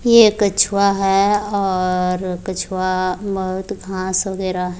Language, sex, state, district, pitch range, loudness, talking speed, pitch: Hindi, female, Bihar, Muzaffarpur, 185-200 Hz, -18 LUFS, 110 wpm, 190 Hz